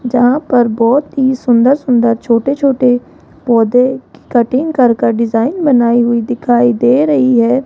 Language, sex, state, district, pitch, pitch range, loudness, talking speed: Hindi, female, Rajasthan, Jaipur, 245 Hz, 235-265 Hz, -12 LUFS, 155 wpm